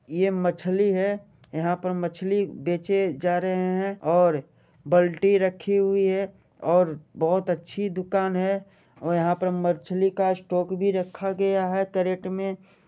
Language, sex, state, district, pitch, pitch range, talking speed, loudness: Hindi, male, Jharkhand, Jamtara, 185 Hz, 175-195 Hz, 150 wpm, -25 LUFS